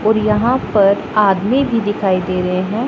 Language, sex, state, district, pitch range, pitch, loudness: Hindi, female, Punjab, Pathankot, 195-225 Hz, 210 Hz, -15 LUFS